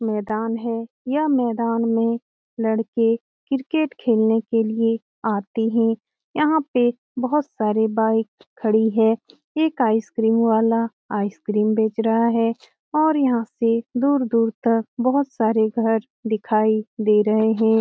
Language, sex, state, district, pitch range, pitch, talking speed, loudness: Hindi, female, Bihar, Lakhisarai, 220-240 Hz, 225 Hz, 130 wpm, -21 LUFS